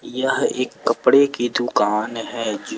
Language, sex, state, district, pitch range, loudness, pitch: Hindi, male, Jharkhand, Palamu, 110-120 Hz, -20 LUFS, 120 Hz